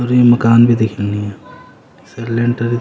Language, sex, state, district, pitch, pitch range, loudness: Garhwali, male, Uttarakhand, Uttarkashi, 115 Hz, 110-120 Hz, -13 LUFS